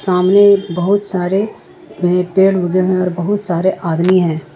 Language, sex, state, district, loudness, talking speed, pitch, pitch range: Hindi, female, Jharkhand, Ranchi, -14 LUFS, 145 wpm, 185 Hz, 175-195 Hz